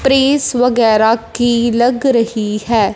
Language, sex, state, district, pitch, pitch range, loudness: Hindi, female, Punjab, Fazilka, 235 Hz, 225-250 Hz, -13 LUFS